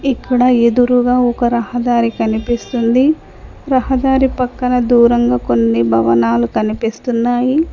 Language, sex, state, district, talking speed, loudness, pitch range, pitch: Telugu, female, Telangana, Mahabubabad, 85 wpm, -14 LUFS, 225-250 Hz, 240 Hz